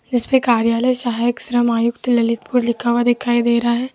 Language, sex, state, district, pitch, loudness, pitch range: Hindi, female, Uttar Pradesh, Lalitpur, 240 Hz, -17 LUFS, 235-245 Hz